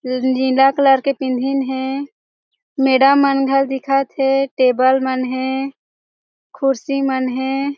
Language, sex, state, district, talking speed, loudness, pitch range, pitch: Chhattisgarhi, female, Chhattisgarh, Jashpur, 125 wpm, -17 LUFS, 260-275 Hz, 270 Hz